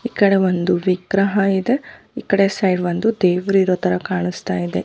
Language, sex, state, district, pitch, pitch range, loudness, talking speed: Kannada, female, Karnataka, Dharwad, 185 Hz, 180-195 Hz, -18 LUFS, 160 wpm